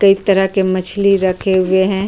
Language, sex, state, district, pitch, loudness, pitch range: Hindi, female, Uttar Pradesh, Jyotiba Phule Nagar, 190 Hz, -14 LUFS, 185-195 Hz